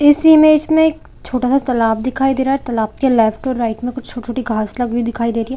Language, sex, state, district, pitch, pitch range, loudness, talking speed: Hindi, female, Chhattisgarh, Korba, 250 Hz, 230-270 Hz, -15 LUFS, 270 wpm